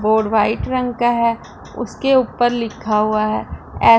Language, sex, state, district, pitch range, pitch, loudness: Hindi, female, Punjab, Pathankot, 215-240 Hz, 225 Hz, -18 LUFS